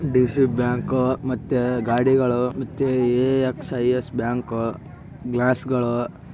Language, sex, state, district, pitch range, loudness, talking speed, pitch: Kannada, male, Karnataka, Bellary, 120-130 Hz, -22 LUFS, 115 wpm, 125 Hz